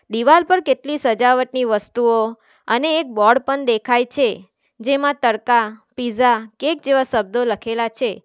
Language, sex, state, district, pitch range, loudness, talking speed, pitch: Gujarati, female, Gujarat, Valsad, 225-270 Hz, -18 LUFS, 140 wpm, 245 Hz